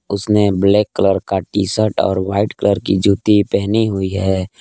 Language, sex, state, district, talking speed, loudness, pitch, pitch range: Hindi, male, Jharkhand, Palamu, 180 wpm, -16 LUFS, 100 Hz, 95-105 Hz